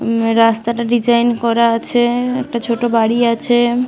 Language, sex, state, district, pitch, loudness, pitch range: Bengali, female, West Bengal, Malda, 235 Hz, -15 LUFS, 230-240 Hz